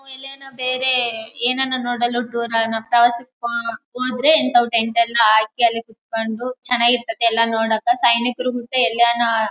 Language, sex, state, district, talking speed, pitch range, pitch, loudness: Kannada, female, Karnataka, Bellary, 125 wpm, 230-255 Hz, 240 Hz, -18 LUFS